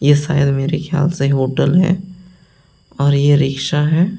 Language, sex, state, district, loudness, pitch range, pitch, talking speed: Hindi, male, Delhi, New Delhi, -15 LUFS, 140-170 Hz, 150 Hz, 155 wpm